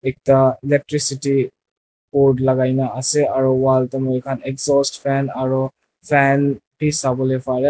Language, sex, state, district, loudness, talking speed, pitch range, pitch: Nagamese, male, Nagaland, Dimapur, -18 LUFS, 135 wpm, 130-140 Hz, 135 Hz